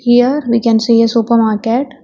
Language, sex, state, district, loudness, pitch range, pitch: English, female, Telangana, Hyderabad, -12 LUFS, 230-245 Hz, 235 Hz